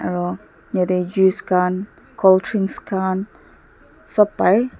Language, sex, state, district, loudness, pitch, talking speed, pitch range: Nagamese, female, Nagaland, Dimapur, -19 LUFS, 190 Hz, 100 wpm, 180-200 Hz